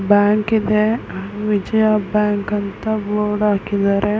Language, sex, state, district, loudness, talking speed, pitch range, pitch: Kannada, female, Karnataka, Belgaum, -18 LUFS, 100 wpm, 205-215 Hz, 210 Hz